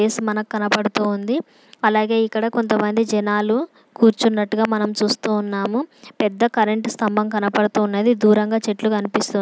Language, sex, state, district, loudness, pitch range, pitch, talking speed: Telugu, female, Andhra Pradesh, Srikakulam, -19 LUFS, 210-225 Hz, 215 Hz, 120 wpm